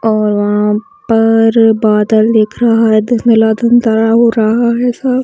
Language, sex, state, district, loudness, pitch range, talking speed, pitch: Hindi, female, Chhattisgarh, Bastar, -10 LUFS, 220-235 Hz, 170 wpm, 225 Hz